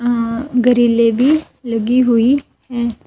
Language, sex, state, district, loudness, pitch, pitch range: Hindi, female, Himachal Pradesh, Shimla, -15 LUFS, 240 Hz, 230-250 Hz